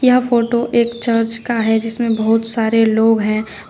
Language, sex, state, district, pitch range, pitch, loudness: Hindi, female, Uttar Pradesh, Shamli, 225-235 Hz, 225 Hz, -15 LUFS